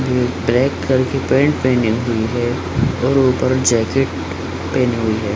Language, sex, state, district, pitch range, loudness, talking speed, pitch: Hindi, male, Bihar, Supaul, 110-130 Hz, -17 LUFS, 170 wpm, 125 Hz